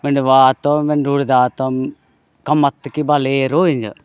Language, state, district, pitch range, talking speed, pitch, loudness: Gondi, Chhattisgarh, Sukma, 130-145 Hz, 120 wpm, 140 Hz, -15 LUFS